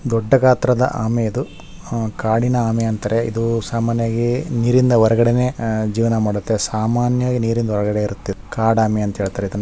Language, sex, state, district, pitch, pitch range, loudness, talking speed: Kannada, male, Karnataka, Shimoga, 115 Hz, 110-120 Hz, -18 LUFS, 155 wpm